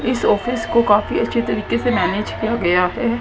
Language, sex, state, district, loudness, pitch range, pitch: Hindi, female, Haryana, Rohtak, -18 LUFS, 205-240 Hz, 230 Hz